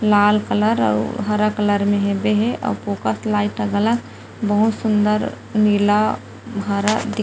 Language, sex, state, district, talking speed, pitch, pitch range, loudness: Chhattisgarhi, female, Chhattisgarh, Rajnandgaon, 125 wpm, 210 Hz, 205-215 Hz, -19 LUFS